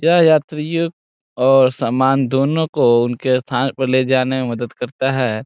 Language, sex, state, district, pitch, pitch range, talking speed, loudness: Hindi, male, Bihar, Saran, 130 Hz, 125-145 Hz, 165 wpm, -17 LUFS